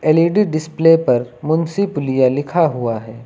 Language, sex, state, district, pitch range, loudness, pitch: Hindi, male, Uttar Pradesh, Lucknow, 125-165 Hz, -16 LUFS, 155 Hz